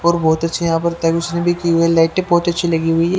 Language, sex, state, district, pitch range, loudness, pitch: Hindi, male, Haryana, Jhajjar, 165-170 Hz, -16 LUFS, 170 Hz